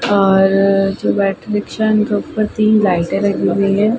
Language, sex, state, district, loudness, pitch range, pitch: Hindi, female, Uttar Pradesh, Ghazipur, -15 LUFS, 195-215 Hz, 200 Hz